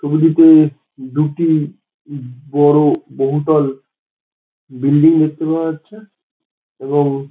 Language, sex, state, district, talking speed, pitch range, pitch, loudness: Bengali, male, West Bengal, Dakshin Dinajpur, 80 wpm, 140-160 Hz, 150 Hz, -14 LUFS